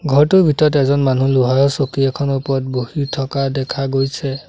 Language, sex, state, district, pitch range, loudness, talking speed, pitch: Assamese, male, Assam, Sonitpur, 135-140 Hz, -16 LUFS, 160 wpm, 135 Hz